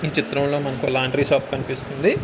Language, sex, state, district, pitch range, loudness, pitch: Telugu, male, Andhra Pradesh, Anantapur, 135-145 Hz, -22 LUFS, 140 Hz